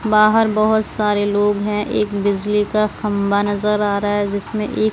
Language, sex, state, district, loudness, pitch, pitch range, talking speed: Hindi, female, Bihar, West Champaran, -18 LUFS, 210 Hz, 205-215 Hz, 180 wpm